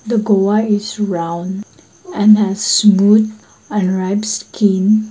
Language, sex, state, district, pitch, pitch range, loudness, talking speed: English, female, Nagaland, Dimapur, 210 Hz, 195-215 Hz, -14 LUFS, 105 wpm